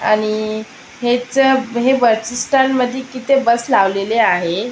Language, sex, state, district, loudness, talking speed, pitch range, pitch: Marathi, female, Maharashtra, Aurangabad, -16 LUFS, 140 wpm, 215-260 Hz, 240 Hz